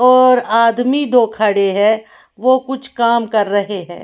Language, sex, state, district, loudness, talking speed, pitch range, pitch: Hindi, female, Maharashtra, Washim, -14 LUFS, 165 wpm, 210-255 Hz, 230 Hz